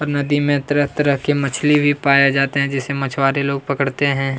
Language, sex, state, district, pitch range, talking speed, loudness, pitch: Hindi, male, Chhattisgarh, Kabirdham, 140-145 Hz, 205 wpm, -17 LUFS, 140 Hz